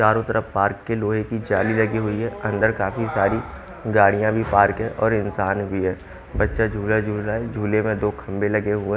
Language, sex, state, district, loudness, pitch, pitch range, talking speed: Hindi, male, Haryana, Jhajjar, -21 LUFS, 105 Hz, 100-110 Hz, 220 wpm